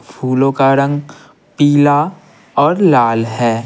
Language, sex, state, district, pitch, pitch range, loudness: Hindi, male, Bihar, Patna, 135 Hz, 120-145 Hz, -13 LUFS